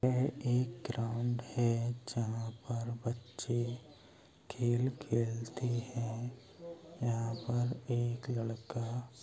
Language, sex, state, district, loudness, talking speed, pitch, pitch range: Hindi, male, Uttar Pradesh, Hamirpur, -36 LUFS, 95 wpm, 120 Hz, 115-125 Hz